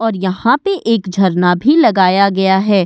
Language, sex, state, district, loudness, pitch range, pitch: Hindi, female, Uttar Pradesh, Budaun, -13 LUFS, 190-230 Hz, 195 Hz